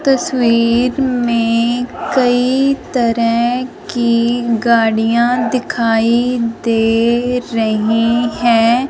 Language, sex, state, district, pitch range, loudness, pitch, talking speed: Hindi, female, Punjab, Fazilka, 230-245 Hz, -14 LUFS, 235 Hz, 65 wpm